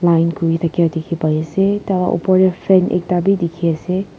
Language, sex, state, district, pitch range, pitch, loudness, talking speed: Nagamese, female, Nagaland, Kohima, 165-185 Hz, 175 Hz, -16 LUFS, 215 wpm